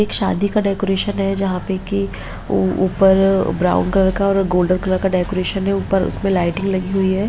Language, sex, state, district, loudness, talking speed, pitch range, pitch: Hindi, female, Bihar, Begusarai, -17 LUFS, 195 wpm, 185-195 Hz, 195 Hz